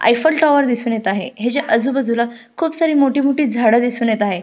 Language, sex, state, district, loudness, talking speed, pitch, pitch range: Marathi, female, Maharashtra, Pune, -16 LUFS, 205 wpm, 240 Hz, 230-285 Hz